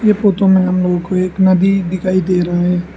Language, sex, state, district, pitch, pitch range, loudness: Hindi, male, Arunachal Pradesh, Lower Dibang Valley, 185 Hz, 180-190 Hz, -14 LUFS